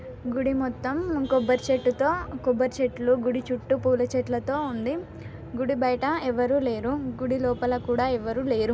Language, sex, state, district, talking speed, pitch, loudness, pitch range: Telugu, female, Telangana, Nalgonda, 145 wpm, 255 Hz, -26 LUFS, 250-270 Hz